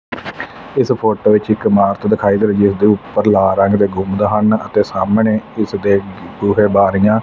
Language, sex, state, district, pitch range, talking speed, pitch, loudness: Punjabi, male, Punjab, Fazilka, 100-105 Hz, 160 wpm, 100 Hz, -14 LUFS